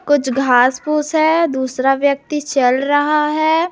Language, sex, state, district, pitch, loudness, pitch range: Hindi, female, Chhattisgarh, Raipur, 290 Hz, -15 LUFS, 265-305 Hz